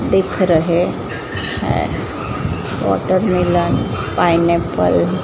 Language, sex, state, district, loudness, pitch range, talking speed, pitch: Hindi, female, Maharashtra, Mumbai Suburban, -17 LUFS, 160-175 Hz, 70 wpm, 170 Hz